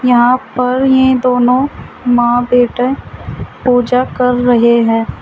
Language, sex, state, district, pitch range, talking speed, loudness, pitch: Hindi, female, Uttar Pradesh, Saharanpur, 245-255 Hz, 115 wpm, -12 LUFS, 250 Hz